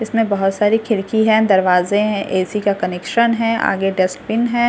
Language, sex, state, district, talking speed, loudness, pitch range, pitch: Hindi, female, Delhi, New Delhi, 180 wpm, -16 LUFS, 195-225 Hz, 210 Hz